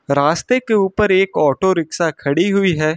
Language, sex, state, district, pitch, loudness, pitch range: Hindi, male, Uttar Pradesh, Lucknow, 175 Hz, -16 LUFS, 155-195 Hz